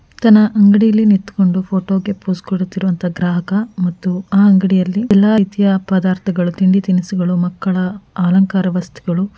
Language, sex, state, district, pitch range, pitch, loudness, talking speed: Kannada, female, Karnataka, Mysore, 185-200 Hz, 190 Hz, -14 LUFS, 75 wpm